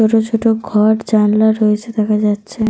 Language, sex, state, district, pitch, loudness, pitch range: Bengali, female, Jharkhand, Sahebganj, 220 Hz, -14 LUFS, 210-220 Hz